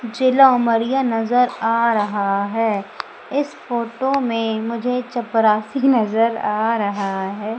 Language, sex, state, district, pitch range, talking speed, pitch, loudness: Hindi, female, Madhya Pradesh, Umaria, 215-250 Hz, 120 wpm, 230 Hz, -19 LUFS